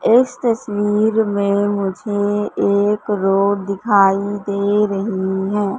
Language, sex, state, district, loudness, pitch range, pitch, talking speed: Hindi, female, Madhya Pradesh, Katni, -17 LUFS, 200-210 Hz, 205 Hz, 105 wpm